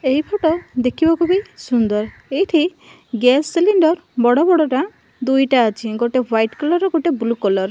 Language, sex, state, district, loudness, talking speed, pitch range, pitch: Odia, female, Odisha, Malkangiri, -17 LUFS, 155 wpm, 240-335 Hz, 270 Hz